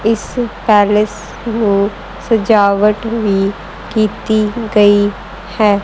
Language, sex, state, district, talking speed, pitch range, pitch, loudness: Punjabi, female, Punjab, Kapurthala, 80 wpm, 205-225 Hz, 210 Hz, -14 LUFS